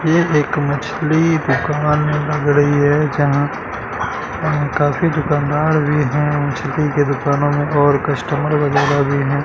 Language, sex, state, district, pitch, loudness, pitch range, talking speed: Hindi, male, Bihar, Katihar, 145 Hz, -16 LUFS, 145-150 Hz, 135 wpm